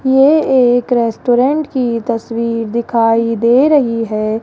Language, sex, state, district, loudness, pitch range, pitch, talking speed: Hindi, female, Rajasthan, Jaipur, -13 LUFS, 230-260 Hz, 235 Hz, 120 wpm